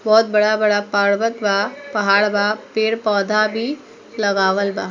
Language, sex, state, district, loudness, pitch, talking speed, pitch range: Bhojpuri, female, Bihar, East Champaran, -18 LUFS, 210 Hz, 120 wpm, 200-220 Hz